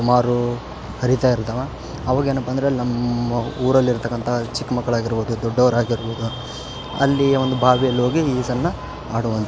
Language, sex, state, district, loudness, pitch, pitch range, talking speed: Kannada, male, Karnataka, Raichur, -20 LUFS, 125 Hz, 120-130 Hz, 115 wpm